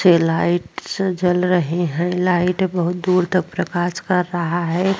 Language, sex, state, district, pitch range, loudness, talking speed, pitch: Hindi, female, Uttar Pradesh, Jyotiba Phule Nagar, 175-180 Hz, -19 LUFS, 170 wpm, 180 Hz